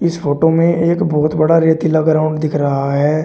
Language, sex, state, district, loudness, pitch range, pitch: Hindi, male, Uttar Pradesh, Shamli, -14 LUFS, 150-165 Hz, 155 Hz